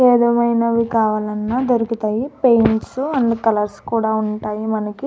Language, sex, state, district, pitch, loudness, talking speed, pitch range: Telugu, female, Andhra Pradesh, Annamaya, 230 Hz, -18 LUFS, 105 wpm, 215-235 Hz